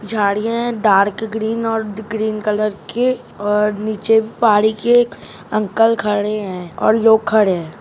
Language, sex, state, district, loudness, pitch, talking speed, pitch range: Maithili, male, Bihar, Saharsa, -17 LUFS, 215 Hz, 155 wpm, 210-225 Hz